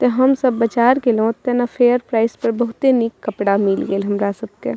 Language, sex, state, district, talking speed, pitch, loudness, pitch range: Maithili, female, Bihar, Madhepura, 200 wpm, 230 Hz, -17 LUFS, 205-245 Hz